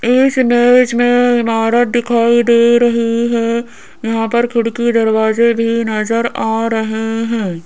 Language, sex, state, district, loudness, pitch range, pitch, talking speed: Hindi, female, Rajasthan, Jaipur, -13 LUFS, 225-240 Hz, 235 Hz, 135 wpm